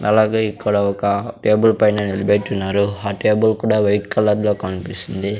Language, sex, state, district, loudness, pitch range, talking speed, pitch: Telugu, male, Andhra Pradesh, Sri Satya Sai, -18 LUFS, 100-105 Hz, 135 wpm, 105 Hz